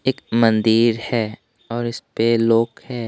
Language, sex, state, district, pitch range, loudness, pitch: Hindi, male, Tripura, West Tripura, 115-120 Hz, -19 LUFS, 115 Hz